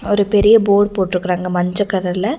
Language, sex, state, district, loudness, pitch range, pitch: Tamil, female, Tamil Nadu, Nilgiris, -15 LUFS, 180-205 Hz, 200 Hz